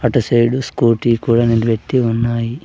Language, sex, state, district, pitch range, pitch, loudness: Telugu, male, Andhra Pradesh, Sri Satya Sai, 115-120 Hz, 115 Hz, -15 LUFS